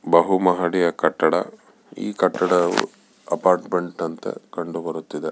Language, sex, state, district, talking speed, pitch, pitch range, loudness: Kannada, male, Karnataka, Bellary, 90 wpm, 90 Hz, 85-90 Hz, -22 LUFS